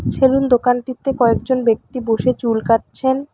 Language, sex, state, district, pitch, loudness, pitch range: Bengali, female, West Bengal, Alipurduar, 250 Hz, -17 LUFS, 230-265 Hz